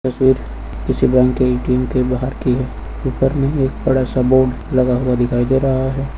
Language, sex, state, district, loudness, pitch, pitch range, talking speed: Hindi, male, Uttar Pradesh, Lucknow, -17 LUFS, 130 Hz, 125-130 Hz, 195 wpm